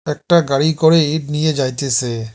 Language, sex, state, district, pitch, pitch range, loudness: Bengali, male, West Bengal, Cooch Behar, 150 Hz, 130-160 Hz, -16 LUFS